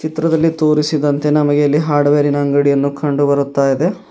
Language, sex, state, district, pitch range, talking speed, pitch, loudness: Kannada, male, Karnataka, Bidar, 145-155 Hz, 115 wpm, 145 Hz, -14 LUFS